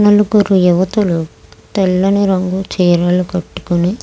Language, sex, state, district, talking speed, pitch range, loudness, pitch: Telugu, female, Andhra Pradesh, Krishna, 105 wpm, 175-195 Hz, -14 LUFS, 185 Hz